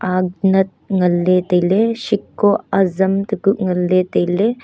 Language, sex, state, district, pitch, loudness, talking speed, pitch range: Wancho, female, Arunachal Pradesh, Longding, 190 Hz, -16 LUFS, 170 wpm, 185-205 Hz